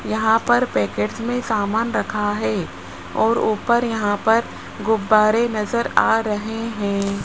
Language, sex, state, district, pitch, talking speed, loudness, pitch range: Hindi, male, Rajasthan, Jaipur, 220 Hz, 130 wpm, -20 LUFS, 205-230 Hz